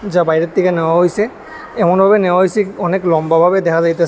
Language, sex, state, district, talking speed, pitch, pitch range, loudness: Bengali, male, Tripura, West Tripura, 175 wpm, 180 Hz, 170-200 Hz, -13 LUFS